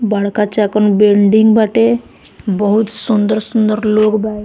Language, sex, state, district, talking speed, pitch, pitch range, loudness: Bhojpuri, female, Bihar, Muzaffarpur, 110 wpm, 215 Hz, 210-220 Hz, -13 LUFS